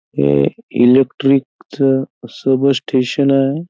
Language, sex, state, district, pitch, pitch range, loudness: Marathi, male, Maharashtra, Chandrapur, 135 Hz, 130-135 Hz, -15 LUFS